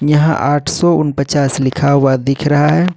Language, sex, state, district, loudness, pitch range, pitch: Hindi, male, Jharkhand, Ranchi, -13 LUFS, 140-150 Hz, 145 Hz